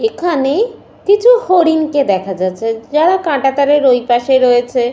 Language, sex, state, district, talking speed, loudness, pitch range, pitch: Bengali, female, West Bengal, Paschim Medinipur, 120 wpm, -13 LUFS, 245-350 Hz, 280 Hz